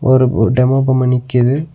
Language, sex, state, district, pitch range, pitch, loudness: Tamil, male, Tamil Nadu, Nilgiris, 125-130 Hz, 130 Hz, -13 LUFS